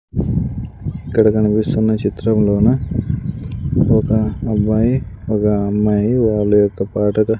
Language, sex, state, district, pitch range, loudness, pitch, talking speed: Telugu, male, Andhra Pradesh, Sri Satya Sai, 105-115 Hz, -17 LUFS, 110 Hz, 90 wpm